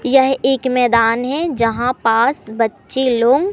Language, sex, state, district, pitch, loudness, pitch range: Hindi, male, Madhya Pradesh, Katni, 255 Hz, -16 LUFS, 230-270 Hz